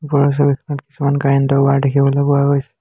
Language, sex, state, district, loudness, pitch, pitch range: Assamese, male, Assam, Hailakandi, -15 LUFS, 140 Hz, 140-145 Hz